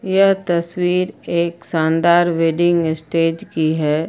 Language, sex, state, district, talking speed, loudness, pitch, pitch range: Hindi, female, Uttar Pradesh, Lucknow, 115 wpm, -17 LUFS, 170 Hz, 160-175 Hz